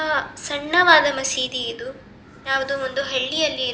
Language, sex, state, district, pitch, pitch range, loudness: Kannada, female, Karnataka, Dakshina Kannada, 270 Hz, 260-295 Hz, -20 LUFS